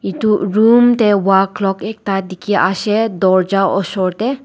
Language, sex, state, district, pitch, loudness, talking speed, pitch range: Nagamese, female, Nagaland, Dimapur, 200 Hz, -14 LUFS, 135 wpm, 190-215 Hz